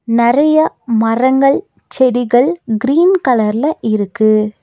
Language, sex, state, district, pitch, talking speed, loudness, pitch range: Tamil, female, Tamil Nadu, Nilgiris, 245 Hz, 80 wpm, -13 LUFS, 225-275 Hz